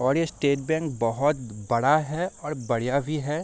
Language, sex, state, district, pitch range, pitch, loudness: Hindi, male, Bihar, Sitamarhi, 125-155 Hz, 145 Hz, -26 LUFS